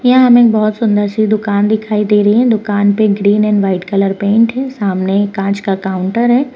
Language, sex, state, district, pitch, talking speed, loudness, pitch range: Hindi, female, Uttarakhand, Uttarkashi, 210 Hz, 220 wpm, -12 LUFS, 200-225 Hz